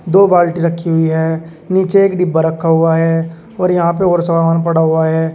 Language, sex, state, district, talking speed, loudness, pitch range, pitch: Hindi, male, Uttar Pradesh, Shamli, 215 wpm, -13 LUFS, 160-180 Hz, 165 Hz